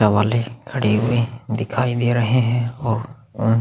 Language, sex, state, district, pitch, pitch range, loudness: Hindi, male, Chhattisgarh, Sukma, 120 Hz, 115-125 Hz, -20 LUFS